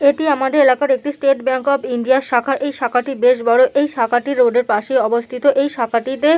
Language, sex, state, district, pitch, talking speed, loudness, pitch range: Bengali, female, West Bengal, Dakshin Dinajpur, 260 Hz, 195 wpm, -16 LUFS, 245-280 Hz